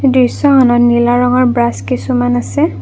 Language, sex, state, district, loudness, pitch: Assamese, female, Assam, Kamrup Metropolitan, -11 LUFS, 240 Hz